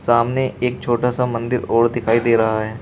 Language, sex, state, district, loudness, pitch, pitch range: Hindi, male, Uttar Pradesh, Shamli, -18 LUFS, 120 Hz, 115-125 Hz